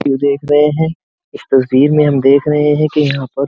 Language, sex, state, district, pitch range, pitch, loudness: Hindi, male, Uttar Pradesh, Jyotiba Phule Nagar, 140-150 Hz, 145 Hz, -12 LUFS